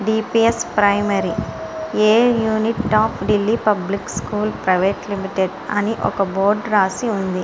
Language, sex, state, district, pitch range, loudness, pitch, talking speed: Telugu, female, Andhra Pradesh, Srikakulam, 200-220 Hz, -18 LUFS, 210 Hz, 120 wpm